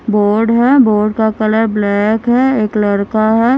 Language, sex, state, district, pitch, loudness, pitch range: Hindi, female, Himachal Pradesh, Shimla, 220 Hz, -12 LUFS, 210-230 Hz